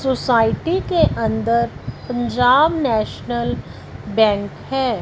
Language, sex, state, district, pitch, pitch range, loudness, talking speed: Hindi, female, Punjab, Fazilka, 240 Hz, 200-265 Hz, -18 LUFS, 85 wpm